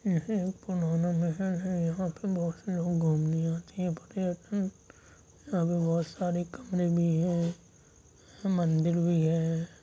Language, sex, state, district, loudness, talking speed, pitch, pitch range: Hindi, male, Uttar Pradesh, Jalaun, -30 LUFS, 145 wpm, 175 Hz, 165-185 Hz